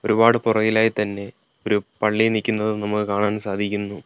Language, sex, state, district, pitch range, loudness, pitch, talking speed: Malayalam, male, Kerala, Kollam, 105-110 Hz, -21 LUFS, 105 Hz, 135 wpm